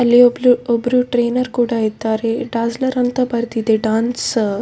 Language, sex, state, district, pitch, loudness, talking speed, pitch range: Kannada, female, Karnataka, Dakshina Kannada, 240 Hz, -17 LUFS, 155 wpm, 225-245 Hz